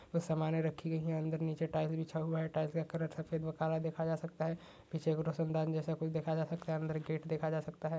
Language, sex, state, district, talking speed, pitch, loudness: Hindi, male, Uttar Pradesh, Budaun, 275 wpm, 160 Hz, -38 LUFS